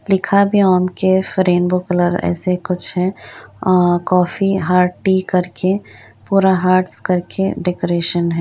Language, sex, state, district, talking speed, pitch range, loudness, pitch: Hindi, female, Uttar Pradesh, Varanasi, 145 wpm, 180-190 Hz, -16 LUFS, 180 Hz